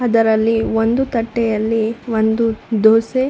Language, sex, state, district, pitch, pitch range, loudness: Kannada, female, Karnataka, Shimoga, 225 Hz, 220-230 Hz, -16 LUFS